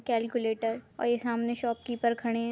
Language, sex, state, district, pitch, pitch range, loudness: Hindi, female, Maharashtra, Aurangabad, 235 Hz, 230-240 Hz, -30 LUFS